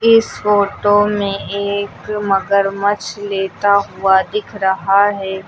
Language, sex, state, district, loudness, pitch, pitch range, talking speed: Hindi, female, Uttar Pradesh, Lucknow, -16 LUFS, 200 Hz, 195-205 Hz, 110 wpm